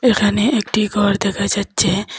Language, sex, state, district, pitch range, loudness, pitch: Bengali, female, Assam, Hailakandi, 200-215 Hz, -17 LUFS, 205 Hz